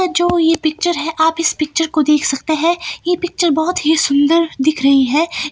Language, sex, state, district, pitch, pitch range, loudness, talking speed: Hindi, female, Himachal Pradesh, Shimla, 320 Hz, 305-340 Hz, -15 LUFS, 205 wpm